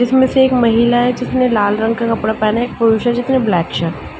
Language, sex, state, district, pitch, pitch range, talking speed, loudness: Hindi, female, Uttar Pradesh, Ghazipur, 235 Hz, 220-245 Hz, 270 wpm, -14 LUFS